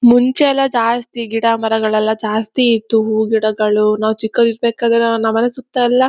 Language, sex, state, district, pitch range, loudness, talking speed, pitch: Kannada, female, Karnataka, Bellary, 220-240 Hz, -15 LUFS, 140 wpm, 230 Hz